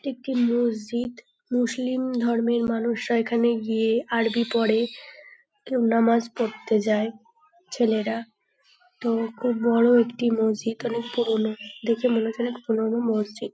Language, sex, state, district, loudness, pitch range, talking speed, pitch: Bengali, female, West Bengal, North 24 Parganas, -24 LUFS, 225-245 Hz, 130 wpm, 235 Hz